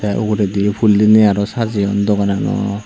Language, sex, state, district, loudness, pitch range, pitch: Chakma, male, Tripura, Unakoti, -15 LUFS, 100-105 Hz, 105 Hz